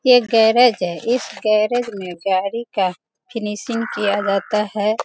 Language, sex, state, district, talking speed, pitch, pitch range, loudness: Hindi, female, Bihar, Sitamarhi, 140 wpm, 210 Hz, 195-235 Hz, -19 LUFS